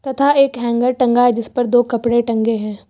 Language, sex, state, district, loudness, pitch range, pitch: Hindi, female, Uttar Pradesh, Lucknow, -16 LUFS, 235-250 Hz, 240 Hz